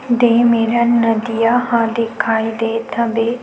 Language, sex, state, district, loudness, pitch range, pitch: Chhattisgarhi, female, Chhattisgarh, Sukma, -16 LUFS, 225-235 Hz, 230 Hz